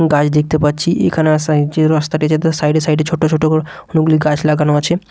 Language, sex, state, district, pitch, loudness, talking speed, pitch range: Bengali, male, Bihar, Katihar, 155 Hz, -14 LUFS, 210 wpm, 150-160 Hz